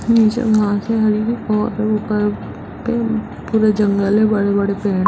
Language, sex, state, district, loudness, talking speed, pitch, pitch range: Hindi, female, Bihar, Muzaffarpur, -17 LUFS, 155 wpm, 215 Hz, 205-225 Hz